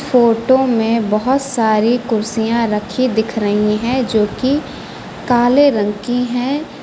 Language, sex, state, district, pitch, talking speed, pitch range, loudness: Hindi, female, Uttar Pradesh, Lucknow, 235 Hz, 125 wpm, 220-260 Hz, -15 LUFS